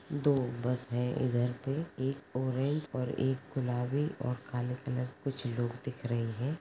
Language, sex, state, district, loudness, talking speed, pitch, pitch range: Hindi, female, Jharkhand, Sahebganj, -34 LUFS, 165 wpm, 130 Hz, 125-140 Hz